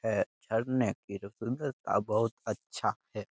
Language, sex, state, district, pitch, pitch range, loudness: Hindi, male, Bihar, Jamui, 115 Hz, 105-125 Hz, -33 LUFS